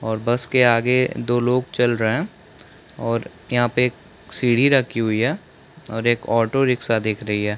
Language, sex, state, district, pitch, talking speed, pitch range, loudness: Hindi, male, Chhattisgarh, Bastar, 120 Hz, 175 wpm, 115-125 Hz, -20 LUFS